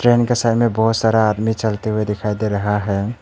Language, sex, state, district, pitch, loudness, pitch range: Hindi, male, Arunachal Pradesh, Papum Pare, 110 Hz, -18 LUFS, 105-115 Hz